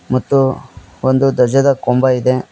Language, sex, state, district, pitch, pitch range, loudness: Kannada, male, Karnataka, Koppal, 130 Hz, 125-135 Hz, -14 LUFS